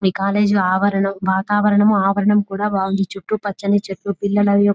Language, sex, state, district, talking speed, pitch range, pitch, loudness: Telugu, female, Telangana, Nalgonda, 150 wpm, 195-205 Hz, 200 Hz, -18 LUFS